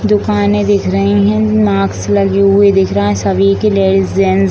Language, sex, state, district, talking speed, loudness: Hindi, female, Bihar, Gopalganj, 200 wpm, -11 LUFS